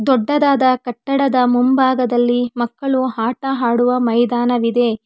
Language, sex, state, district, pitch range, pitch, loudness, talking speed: Kannada, female, Karnataka, Bangalore, 240-260 Hz, 245 Hz, -16 LUFS, 85 wpm